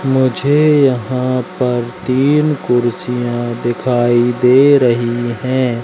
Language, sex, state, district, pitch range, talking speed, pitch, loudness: Hindi, male, Madhya Pradesh, Katni, 120-130 Hz, 90 wpm, 125 Hz, -14 LUFS